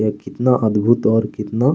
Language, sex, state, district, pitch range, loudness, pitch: Hindi, male, Chhattisgarh, Kabirdham, 110-125 Hz, -17 LUFS, 110 Hz